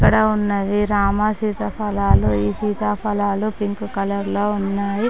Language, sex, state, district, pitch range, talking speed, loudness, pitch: Telugu, female, Andhra Pradesh, Chittoor, 200-210 Hz, 120 wpm, -20 LUFS, 205 Hz